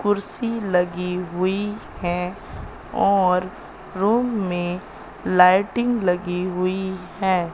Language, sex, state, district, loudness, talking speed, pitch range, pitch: Hindi, female, Madhya Pradesh, Katni, -22 LUFS, 90 wpm, 180-200 Hz, 185 Hz